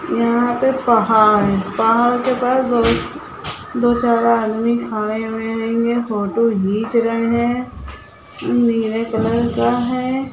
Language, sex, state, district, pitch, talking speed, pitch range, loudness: Hindi, female, Chhattisgarh, Bilaspur, 230 Hz, 130 wpm, 225-240 Hz, -17 LUFS